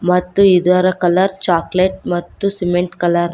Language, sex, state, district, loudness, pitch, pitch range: Kannada, female, Karnataka, Koppal, -15 LUFS, 180 Hz, 175-185 Hz